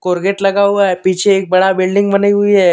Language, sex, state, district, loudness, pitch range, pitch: Hindi, male, Jharkhand, Deoghar, -12 LUFS, 185-200 Hz, 195 Hz